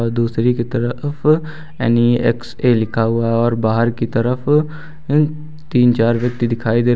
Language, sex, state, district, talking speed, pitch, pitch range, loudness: Hindi, male, Uttar Pradesh, Lucknow, 170 wpm, 120 Hz, 115-150 Hz, -17 LUFS